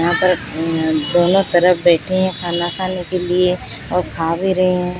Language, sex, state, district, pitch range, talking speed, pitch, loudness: Hindi, female, Odisha, Sambalpur, 170-185 Hz, 180 wpm, 180 Hz, -17 LUFS